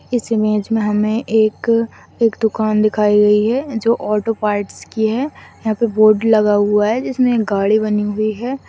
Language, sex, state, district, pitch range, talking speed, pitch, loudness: Hindi, female, Chhattisgarh, Kabirdham, 210-230 Hz, 170 wpm, 220 Hz, -16 LUFS